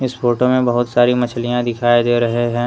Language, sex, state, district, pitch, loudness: Hindi, male, Jharkhand, Deoghar, 120 Hz, -16 LUFS